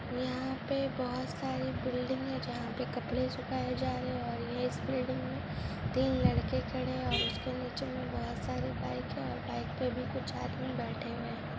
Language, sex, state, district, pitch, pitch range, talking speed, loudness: Hindi, female, Bihar, Gopalganj, 125 Hz, 125-130 Hz, 195 wpm, -35 LUFS